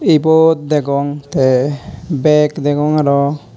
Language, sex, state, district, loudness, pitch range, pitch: Chakma, male, Tripura, Dhalai, -14 LUFS, 140-155 Hz, 145 Hz